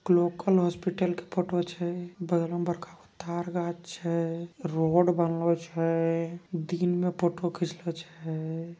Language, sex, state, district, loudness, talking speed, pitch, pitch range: Angika, female, Bihar, Begusarai, -29 LUFS, 165 wpm, 175 Hz, 170-175 Hz